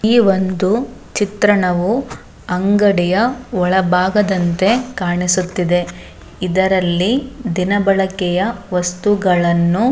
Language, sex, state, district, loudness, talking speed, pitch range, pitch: Kannada, female, Karnataka, Dharwad, -16 LUFS, 75 wpm, 180-205 Hz, 190 Hz